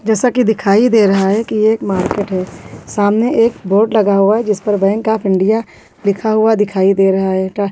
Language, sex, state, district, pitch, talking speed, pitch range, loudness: Hindi, female, Bihar, Katihar, 205 Hz, 220 wpm, 195-220 Hz, -14 LUFS